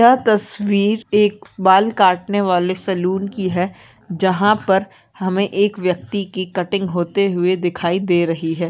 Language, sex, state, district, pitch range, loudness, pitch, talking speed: Hindi, female, Uttarakhand, Uttarkashi, 180-205 Hz, -18 LUFS, 190 Hz, 150 wpm